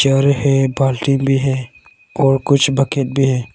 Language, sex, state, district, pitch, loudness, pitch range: Hindi, male, Arunachal Pradesh, Longding, 135 Hz, -15 LUFS, 135-140 Hz